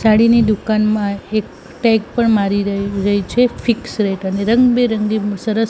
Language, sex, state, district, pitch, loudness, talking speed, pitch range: Gujarati, female, Gujarat, Gandhinagar, 215 Hz, -16 LUFS, 160 wpm, 200-230 Hz